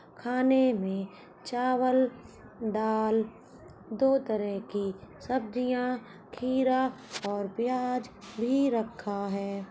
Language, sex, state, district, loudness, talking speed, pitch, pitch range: Hindi, female, Uttar Pradesh, Budaun, -30 LUFS, 85 wpm, 235 Hz, 205-255 Hz